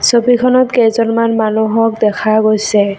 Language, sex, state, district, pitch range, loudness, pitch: Assamese, female, Assam, Kamrup Metropolitan, 215-235 Hz, -12 LUFS, 225 Hz